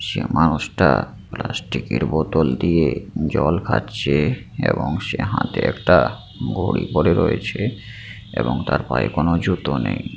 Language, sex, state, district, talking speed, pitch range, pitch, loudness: Bengali, male, West Bengal, Paschim Medinipur, 120 wpm, 75-105 Hz, 85 Hz, -20 LUFS